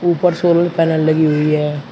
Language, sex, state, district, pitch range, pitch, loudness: Hindi, male, Uttar Pradesh, Shamli, 150-175 Hz, 160 Hz, -15 LUFS